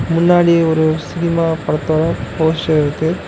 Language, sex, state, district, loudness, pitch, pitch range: Tamil, male, Tamil Nadu, Namakkal, -15 LUFS, 160 Hz, 155-170 Hz